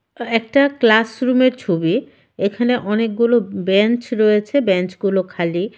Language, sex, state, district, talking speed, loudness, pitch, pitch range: Bengali, female, Tripura, West Tripura, 105 wpm, -17 LUFS, 220 Hz, 195-240 Hz